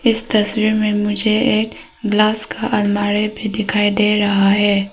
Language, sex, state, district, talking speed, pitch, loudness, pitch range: Hindi, female, Arunachal Pradesh, Papum Pare, 160 wpm, 210 Hz, -16 LUFS, 205-215 Hz